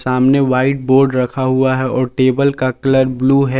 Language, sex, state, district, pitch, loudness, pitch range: Hindi, male, Jharkhand, Palamu, 130 Hz, -14 LUFS, 130-135 Hz